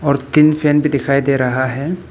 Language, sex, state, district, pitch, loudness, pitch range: Hindi, male, Arunachal Pradesh, Papum Pare, 140 Hz, -15 LUFS, 135-150 Hz